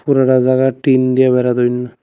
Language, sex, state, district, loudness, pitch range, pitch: Bengali, male, Tripura, West Tripura, -13 LUFS, 125-130 Hz, 130 Hz